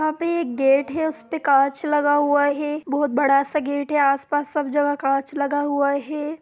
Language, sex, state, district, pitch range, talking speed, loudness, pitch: Hindi, female, Bihar, Sitamarhi, 280-300 Hz, 215 wpm, -21 LUFS, 290 Hz